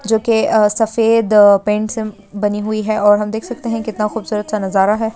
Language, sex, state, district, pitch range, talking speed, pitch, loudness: Hindi, female, Bihar, Sitamarhi, 210-225 Hz, 210 wpm, 215 Hz, -15 LUFS